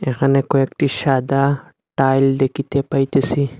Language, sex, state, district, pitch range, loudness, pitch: Bengali, male, Assam, Hailakandi, 135-140 Hz, -18 LUFS, 135 Hz